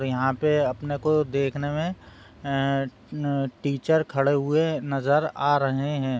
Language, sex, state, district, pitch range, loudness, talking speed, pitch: Hindi, male, Bihar, Sitamarhi, 135-150 Hz, -25 LUFS, 145 wpm, 140 Hz